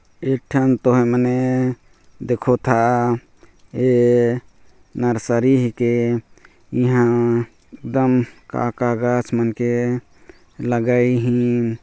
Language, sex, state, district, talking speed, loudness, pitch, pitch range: Chhattisgarhi, male, Chhattisgarh, Jashpur, 85 wpm, -19 LUFS, 120 Hz, 120-125 Hz